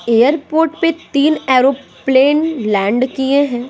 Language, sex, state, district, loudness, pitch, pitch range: Hindi, female, Bihar, West Champaran, -14 LUFS, 275 Hz, 255-305 Hz